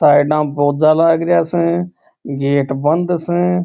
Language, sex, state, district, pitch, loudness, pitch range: Marwari, male, Rajasthan, Churu, 160 Hz, -15 LUFS, 145-175 Hz